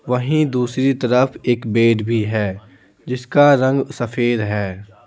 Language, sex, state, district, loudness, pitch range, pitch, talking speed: Hindi, male, Bihar, Patna, -18 LUFS, 110-130 Hz, 120 Hz, 130 wpm